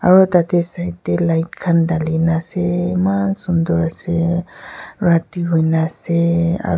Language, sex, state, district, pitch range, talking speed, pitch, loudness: Nagamese, female, Nagaland, Kohima, 165-175 Hz, 135 wpm, 170 Hz, -17 LUFS